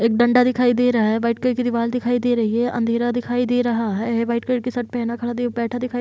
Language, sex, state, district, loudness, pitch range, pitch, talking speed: Hindi, female, Bihar, Kishanganj, -20 LUFS, 235-245 Hz, 240 Hz, 230 wpm